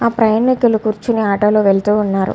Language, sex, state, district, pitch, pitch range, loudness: Telugu, female, Andhra Pradesh, Guntur, 215 Hz, 205-230 Hz, -14 LUFS